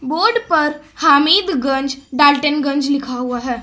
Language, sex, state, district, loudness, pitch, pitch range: Hindi, female, Jharkhand, Palamu, -15 LUFS, 285 Hz, 270-305 Hz